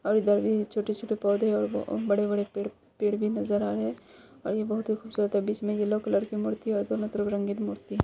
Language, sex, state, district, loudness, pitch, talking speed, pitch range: Hindi, female, Bihar, Saharsa, -28 LUFS, 210 Hz, 240 wpm, 200-215 Hz